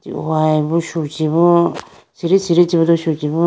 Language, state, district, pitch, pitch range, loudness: Idu Mishmi, Arunachal Pradesh, Lower Dibang Valley, 165 Hz, 155-170 Hz, -16 LUFS